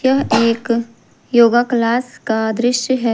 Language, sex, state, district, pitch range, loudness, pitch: Hindi, female, Jharkhand, Garhwa, 230-250 Hz, -16 LUFS, 235 Hz